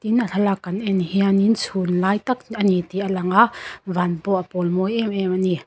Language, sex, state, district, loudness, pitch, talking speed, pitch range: Mizo, female, Mizoram, Aizawl, -21 LUFS, 195 Hz, 220 wpm, 185-205 Hz